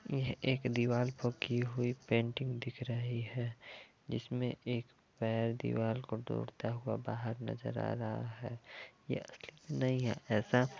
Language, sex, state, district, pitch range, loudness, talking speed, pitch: Hindi, male, Uttar Pradesh, Varanasi, 115-130 Hz, -37 LUFS, 155 wpm, 120 Hz